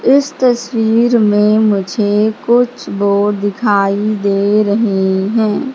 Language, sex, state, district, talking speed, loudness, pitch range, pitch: Hindi, female, Madhya Pradesh, Katni, 105 wpm, -13 LUFS, 205-235 Hz, 210 Hz